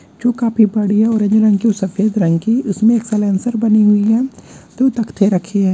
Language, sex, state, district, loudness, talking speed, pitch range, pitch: Hindi, male, Chhattisgarh, Bilaspur, -15 LUFS, 210 wpm, 205-230 Hz, 215 Hz